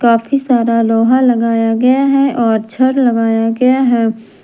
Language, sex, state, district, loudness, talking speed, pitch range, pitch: Hindi, female, Jharkhand, Garhwa, -12 LUFS, 150 wpm, 225-255 Hz, 235 Hz